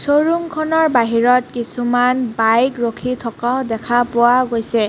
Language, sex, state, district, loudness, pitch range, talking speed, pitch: Assamese, female, Assam, Kamrup Metropolitan, -16 LUFS, 235-255 Hz, 110 wpm, 245 Hz